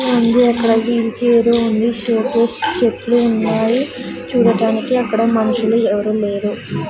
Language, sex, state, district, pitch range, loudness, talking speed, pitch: Telugu, female, Andhra Pradesh, Sri Satya Sai, 225-240 Hz, -15 LUFS, 115 wpm, 230 Hz